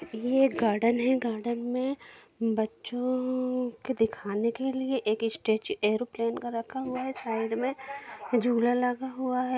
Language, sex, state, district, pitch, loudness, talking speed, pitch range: Hindi, female, Jharkhand, Jamtara, 245 Hz, -29 LUFS, 150 wpm, 225-260 Hz